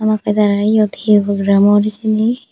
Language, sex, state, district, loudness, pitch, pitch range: Chakma, female, Tripura, Dhalai, -14 LUFS, 210 Hz, 205-215 Hz